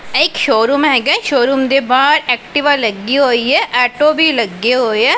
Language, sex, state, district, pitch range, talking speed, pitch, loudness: Punjabi, female, Punjab, Pathankot, 245-290 Hz, 195 wpm, 265 Hz, -12 LUFS